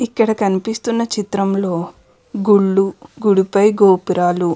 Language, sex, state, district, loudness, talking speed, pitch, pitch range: Telugu, female, Andhra Pradesh, Krishna, -16 LUFS, 90 wpm, 200 Hz, 190-215 Hz